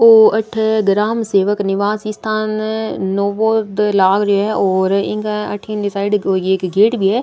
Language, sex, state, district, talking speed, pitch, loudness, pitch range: Rajasthani, female, Rajasthan, Nagaur, 150 wpm, 210 Hz, -16 LUFS, 200-215 Hz